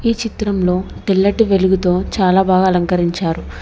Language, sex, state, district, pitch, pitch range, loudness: Telugu, female, Telangana, Hyderabad, 190 Hz, 180-200 Hz, -15 LUFS